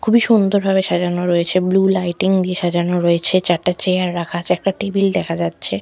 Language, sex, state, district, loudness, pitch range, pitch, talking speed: Bengali, female, West Bengal, Malda, -17 LUFS, 175-190 Hz, 180 Hz, 185 wpm